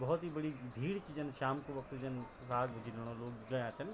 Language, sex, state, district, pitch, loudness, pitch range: Garhwali, male, Uttarakhand, Tehri Garhwal, 130 Hz, -41 LUFS, 120-145 Hz